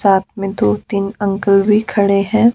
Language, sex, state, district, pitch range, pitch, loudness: Hindi, male, Himachal Pradesh, Shimla, 195-205 Hz, 200 Hz, -15 LUFS